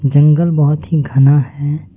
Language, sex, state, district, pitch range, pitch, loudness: Hindi, male, West Bengal, Alipurduar, 145-150 Hz, 145 Hz, -13 LUFS